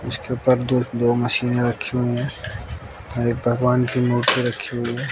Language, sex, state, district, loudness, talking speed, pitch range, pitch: Hindi, male, Bihar, West Champaran, -21 LUFS, 175 wpm, 120-125 Hz, 120 Hz